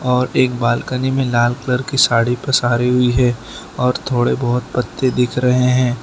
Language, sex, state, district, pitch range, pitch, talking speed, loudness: Hindi, male, Gujarat, Valsad, 120-130 Hz, 125 Hz, 180 wpm, -16 LUFS